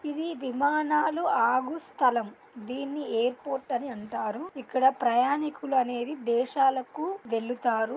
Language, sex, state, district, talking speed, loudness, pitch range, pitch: Telugu, female, Andhra Pradesh, Guntur, 105 wpm, -28 LUFS, 245-300 Hz, 265 Hz